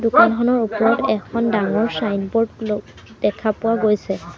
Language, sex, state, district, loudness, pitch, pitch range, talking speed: Assamese, female, Assam, Sonitpur, -19 LUFS, 220 Hz, 210-230 Hz, 125 wpm